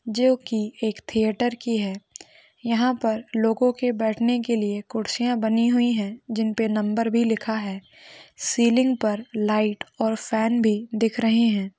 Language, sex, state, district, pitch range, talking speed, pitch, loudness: Hindi, female, Maharashtra, Nagpur, 215-235 Hz, 165 wpm, 225 Hz, -23 LUFS